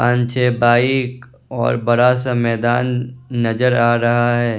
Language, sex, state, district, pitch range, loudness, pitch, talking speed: Hindi, male, Bihar, West Champaran, 120-125 Hz, -16 LUFS, 120 Hz, 145 wpm